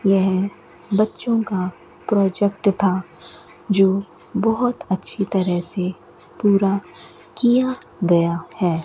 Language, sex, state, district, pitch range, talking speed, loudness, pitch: Hindi, female, Rajasthan, Bikaner, 180-205 Hz, 95 wpm, -20 LUFS, 195 Hz